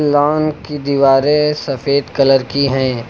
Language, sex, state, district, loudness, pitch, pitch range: Hindi, male, Uttar Pradesh, Lucknow, -14 LUFS, 140 Hz, 135-150 Hz